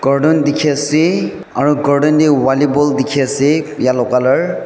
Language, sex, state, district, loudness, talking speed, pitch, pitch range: Nagamese, male, Nagaland, Dimapur, -13 LUFS, 165 wpm, 145 Hz, 135-150 Hz